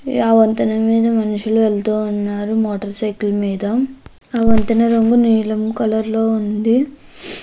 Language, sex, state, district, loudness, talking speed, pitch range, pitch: Telugu, female, Andhra Pradesh, Krishna, -17 LUFS, 120 wpm, 210-225 Hz, 220 Hz